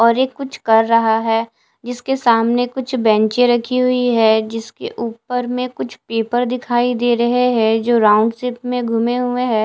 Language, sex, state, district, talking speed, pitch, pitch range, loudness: Hindi, female, Delhi, New Delhi, 180 wpm, 240 Hz, 225-250 Hz, -16 LUFS